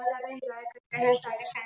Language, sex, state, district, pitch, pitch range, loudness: Hindi, female, Chhattisgarh, Raigarh, 245 Hz, 235-255 Hz, -30 LUFS